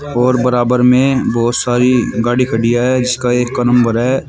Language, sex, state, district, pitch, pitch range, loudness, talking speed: Hindi, male, Uttar Pradesh, Shamli, 125 Hz, 120-125 Hz, -13 LUFS, 180 wpm